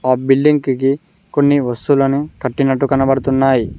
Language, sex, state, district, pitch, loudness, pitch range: Telugu, male, Telangana, Mahabubabad, 135 Hz, -15 LUFS, 130-145 Hz